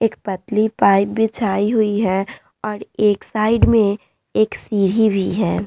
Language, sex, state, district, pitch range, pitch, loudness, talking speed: Hindi, female, Bihar, Vaishali, 200-220 Hz, 210 Hz, -18 LUFS, 150 wpm